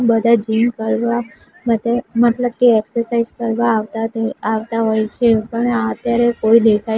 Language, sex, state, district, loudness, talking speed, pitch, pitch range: Gujarati, female, Gujarat, Gandhinagar, -17 LUFS, 145 wpm, 230 Hz, 220-235 Hz